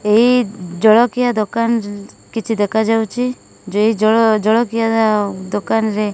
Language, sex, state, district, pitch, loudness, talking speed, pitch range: Odia, female, Odisha, Malkangiri, 220 Hz, -16 LUFS, 95 wpm, 210-225 Hz